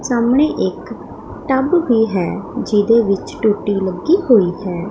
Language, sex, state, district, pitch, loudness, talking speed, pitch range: Punjabi, female, Punjab, Pathankot, 225 Hz, -16 LUFS, 135 wpm, 195-265 Hz